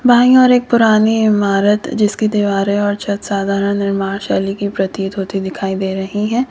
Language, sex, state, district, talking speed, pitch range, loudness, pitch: Hindi, female, Uttar Pradesh, Lalitpur, 175 wpm, 195-215 Hz, -15 LUFS, 200 Hz